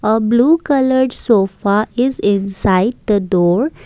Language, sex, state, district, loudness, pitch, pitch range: English, female, Assam, Kamrup Metropolitan, -15 LUFS, 215 Hz, 195-250 Hz